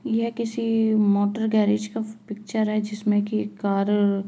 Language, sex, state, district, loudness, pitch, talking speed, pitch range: Hindi, female, Uttarakhand, Tehri Garhwal, -23 LUFS, 215 Hz, 170 wpm, 205-225 Hz